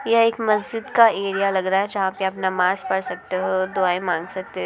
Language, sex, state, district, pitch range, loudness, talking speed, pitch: Hindi, female, Bihar, Muzaffarpur, 185-200 Hz, -21 LUFS, 245 wpm, 190 Hz